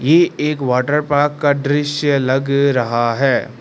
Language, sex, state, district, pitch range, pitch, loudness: Hindi, male, Arunachal Pradesh, Lower Dibang Valley, 135-150 Hz, 140 Hz, -16 LUFS